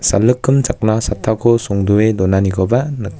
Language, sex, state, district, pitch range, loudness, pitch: Garo, male, Meghalaya, West Garo Hills, 100-120 Hz, -15 LUFS, 110 Hz